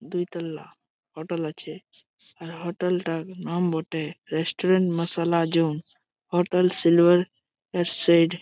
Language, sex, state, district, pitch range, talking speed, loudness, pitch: Bengali, male, West Bengal, Malda, 165-180 Hz, 100 wpm, -24 LUFS, 170 Hz